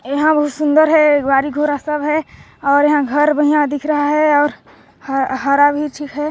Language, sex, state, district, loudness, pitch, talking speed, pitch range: Hindi, female, Chhattisgarh, Balrampur, -15 LUFS, 295 Hz, 190 wpm, 285-300 Hz